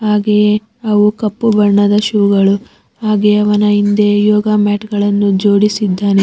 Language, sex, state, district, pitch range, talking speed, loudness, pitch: Kannada, female, Karnataka, Bangalore, 205-210 Hz, 125 wpm, -12 LUFS, 210 Hz